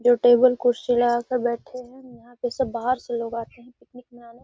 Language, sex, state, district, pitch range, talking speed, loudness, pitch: Hindi, female, Bihar, Gaya, 240-250 Hz, 230 wpm, -22 LUFS, 245 Hz